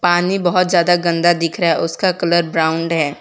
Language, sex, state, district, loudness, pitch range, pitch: Hindi, female, Gujarat, Valsad, -16 LUFS, 165-175 Hz, 170 Hz